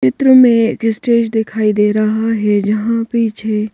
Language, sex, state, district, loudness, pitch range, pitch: Hindi, female, Madhya Pradesh, Bhopal, -13 LUFS, 215-230 Hz, 220 Hz